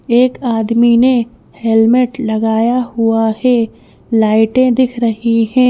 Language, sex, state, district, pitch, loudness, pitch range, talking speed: Hindi, female, Madhya Pradesh, Bhopal, 235 Hz, -13 LUFS, 225-250 Hz, 115 wpm